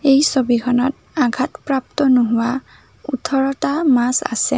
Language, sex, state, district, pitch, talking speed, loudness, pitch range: Assamese, female, Assam, Kamrup Metropolitan, 265 Hz, 90 wpm, -18 LUFS, 250-280 Hz